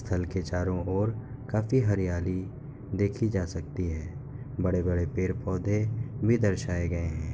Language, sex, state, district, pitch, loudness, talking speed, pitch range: Hindi, male, Bihar, Kishanganj, 95 Hz, -30 LUFS, 130 wpm, 90-115 Hz